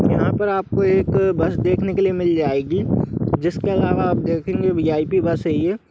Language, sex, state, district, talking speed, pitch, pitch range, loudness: Hindi, male, Bihar, Darbhanga, 195 wpm, 180 Hz, 165-190 Hz, -19 LUFS